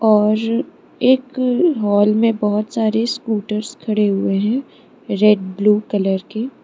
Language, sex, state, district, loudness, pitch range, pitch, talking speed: Hindi, female, Arunachal Pradesh, Lower Dibang Valley, -17 LUFS, 205-230 Hz, 215 Hz, 125 wpm